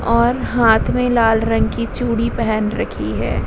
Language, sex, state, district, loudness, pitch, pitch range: Hindi, female, Bihar, Vaishali, -17 LUFS, 225 Hz, 215-235 Hz